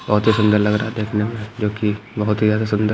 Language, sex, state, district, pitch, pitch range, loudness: Hindi, male, Haryana, Jhajjar, 105 Hz, 105-110 Hz, -19 LUFS